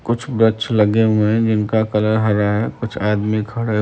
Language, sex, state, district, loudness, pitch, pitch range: Hindi, male, Uttar Pradesh, Budaun, -17 LUFS, 110 Hz, 105-115 Hz